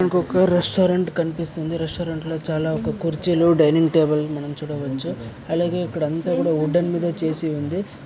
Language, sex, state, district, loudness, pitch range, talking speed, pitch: Telugu, male, Andhra Pradesh, Krishna, -21 LUFS, 155-175 Hz, 150 wpm, 165 Hz